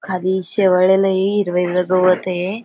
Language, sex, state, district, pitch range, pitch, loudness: Marathi, female, Maharashtra, Aurangabad, 180-190 Hz, 185 Hz, -16 LUFS